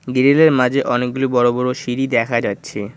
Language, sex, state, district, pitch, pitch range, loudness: Bengali, male, West Bengal, Cooch Behar, 125 Hz, 120-135 Hz, -17 LUFS